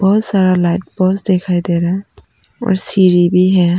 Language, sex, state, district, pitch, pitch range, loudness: Hindi, female, Arunachal Pradesh, Papum Pare, 185 Hz, 175-190 Hz, -14 LUFS